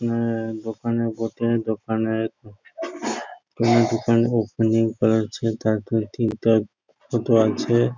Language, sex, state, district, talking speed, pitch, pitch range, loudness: Bengali, male, West Bengal, Purulia, 100 wpm, 115 Hz, 110-115 Hz, -22 LUFS